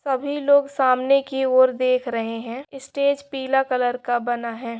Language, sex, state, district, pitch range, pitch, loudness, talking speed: Hindi, female, Bihar, Saran, 245-275 Hz, 260 Hz, -21 LUFS, 185 wpm